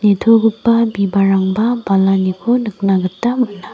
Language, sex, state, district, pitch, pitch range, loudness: Garo, female, Meghalaya, West Garo Hills, 205 Hz, 195-230 Hz, -14 LUFS